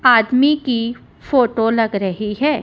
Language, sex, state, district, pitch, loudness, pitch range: Hindi, female, Punjab, Kapurthala, 235 Hz, -17 LUFS, 225-260 Hz